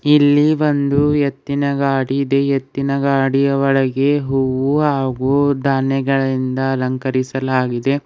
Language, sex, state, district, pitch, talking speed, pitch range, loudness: Kannada, male, Karnataka, Bidar, 135 Hz, 90 wpm, 135-140 Hz, -17 LUFS